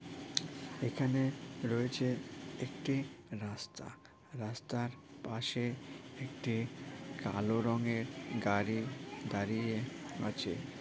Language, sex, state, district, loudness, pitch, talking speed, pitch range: Bengali, male, West Bengal, Paschim Medinipur, -38 LUFS, 125 Hz, 65 wpm, 115-135 Hz